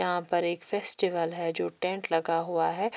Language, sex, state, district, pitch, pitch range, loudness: Hindi, female, Chhattisgarh, Raipur, 170 Hz, 165-175 Hz, -21 LUFS